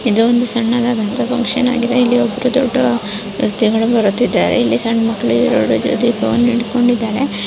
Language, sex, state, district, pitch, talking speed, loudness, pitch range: Kannada, female, Karnataka, Dharwad, 240 Hz, 55 wpm, -15 LUFS, 225-245 Hz